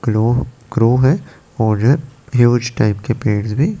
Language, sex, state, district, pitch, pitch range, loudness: Hindi, male, Chandigarh, Chandigarh, 120 Hz, 110-135 Hz, -16 LUFS